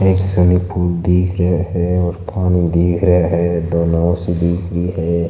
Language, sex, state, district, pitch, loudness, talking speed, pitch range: Marwari, male, Rajasthan, Nagaur, 90 Hz, -16 LUFS, 160 wpm, 85-90 Hz